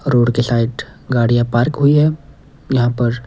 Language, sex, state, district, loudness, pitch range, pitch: Hindi, male, Himachal Pradesh, Shimla, -16 LUFS, 120-140 Hz, 120 Hz